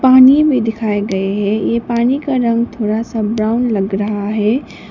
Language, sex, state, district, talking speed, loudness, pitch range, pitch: Hindi, female, Sikkim, Gangtok, 185 wpm, -15 LUFS, 210-245 Hz, 225 Hz